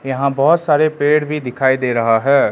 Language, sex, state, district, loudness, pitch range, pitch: Hindi, male, Arunachal Pradesh, Lower Dibang Valley, -15 LUFS, 130-150 Hz, 140 Hz